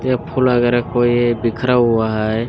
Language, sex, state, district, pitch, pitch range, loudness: Hindi, male, Chhattisgarh, Bilaspur, 120 Hz, 115-125 Hz, -16 LUFS